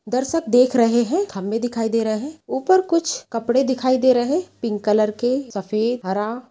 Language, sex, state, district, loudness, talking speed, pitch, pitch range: Hindi, female, Uttarakhand, Tehri Garhwal, -20 LUFS, 195 wpm, 245 Hz, 220-265 Hz